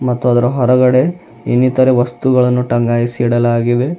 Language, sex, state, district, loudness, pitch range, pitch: Kannada, male, Karnataka, Bidar, -13 LUFS, 120-130 Hz, 125 Hz